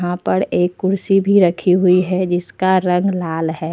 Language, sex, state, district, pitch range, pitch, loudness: Hindi, female, Jharkhand, Ranchi, 175-190 Hz, 180 Hz, -16 LUFS